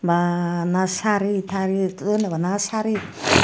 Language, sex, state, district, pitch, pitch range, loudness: Chakma, female, Tripura, Dhalai, 190 Hz, 175-205 Hz, -22 LUFS